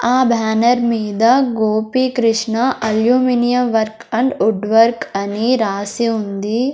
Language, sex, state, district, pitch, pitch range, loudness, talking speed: Telugu, female, Andhra Pradesh, Sri Satya Sai, 230 Hz, 220-245 Hz, -16 LUFS, 105 wpm